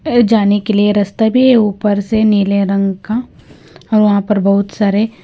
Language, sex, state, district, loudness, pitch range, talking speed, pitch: Hindi, female, Punjab, Kapurthala, -13 LUFS, 200-220 Hz, 185 wpm, 205 Hz